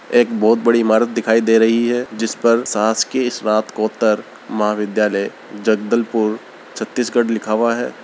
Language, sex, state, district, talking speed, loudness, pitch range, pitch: Hindi, male, Rajasthan, Churu, 135 wpm, -17 LUFS, 110-115 Hz, 115 Hz